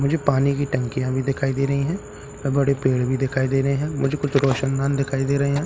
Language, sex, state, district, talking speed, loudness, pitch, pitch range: Hindi, male, Bihar, Katihar, 265 wpm, -22 LUFS, 140 Hz, 135-140 Hz